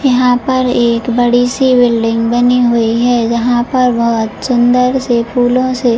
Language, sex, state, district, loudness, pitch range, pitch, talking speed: Hindi, female, Chhattisgarh, Bilaspur, -12 LUFS, 235-250 Hz, 245 Hz, 170 wpm